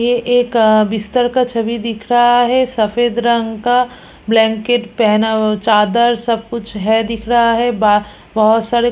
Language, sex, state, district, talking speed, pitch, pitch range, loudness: Hindi, female, Chhattisgarh, Kabirdham, 170 wpm, 230 Hz, 220-240 Hz, -14 LUFS